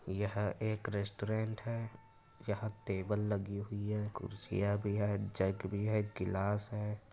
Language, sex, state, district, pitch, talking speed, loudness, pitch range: Hindi, male, Uttar Pradesh, Etah, 105 Hz, 145 wpm, -38 LUFS, 100-110 Hz